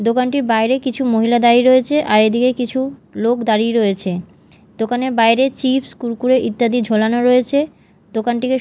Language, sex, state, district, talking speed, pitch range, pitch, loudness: Bengali, female, Odisha, Malkangiri, 140 wpm, 225-255 Hz, 240 Hz, -16 LUFS